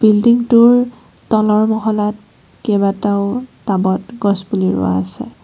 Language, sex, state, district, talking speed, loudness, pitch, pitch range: Assamese, female, Assam, Kamrup Metropolitan, 100 wpm, -15 LUFS, 210 Hz, 200-230 Hz